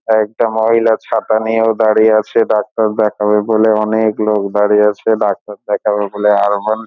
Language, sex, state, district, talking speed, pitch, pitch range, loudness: Bengali, male, West Bengal, Dakshin Dinajpur, 150 wpm, 110 Hz, 105-110 Hz, -13 LUFS